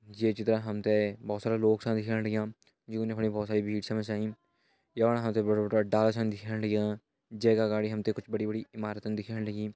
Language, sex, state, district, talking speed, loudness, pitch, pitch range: Hindi, male, Uttarakhand, Tehri Garhwal, 225 wpm, -31 LUFS, 110 Hz, 105-110 Hz